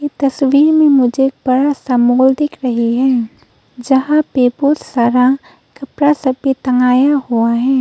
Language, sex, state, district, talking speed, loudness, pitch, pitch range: Hindi, female, Arunachal Pradesh, Papum Pare, 155 wpm, -13 LUFS, 265 Hz, 250-285 Hz